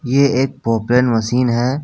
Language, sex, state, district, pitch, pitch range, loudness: Hindi, male, Bihar, Jamui, 125 Hz, 120-135 Hz, -16 LUFS